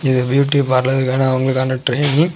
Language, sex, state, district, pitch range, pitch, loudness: Tamil, male, Tamil Nadu, Kanyakumari, 130-140 Hz, 130 Hz, -16 LUFS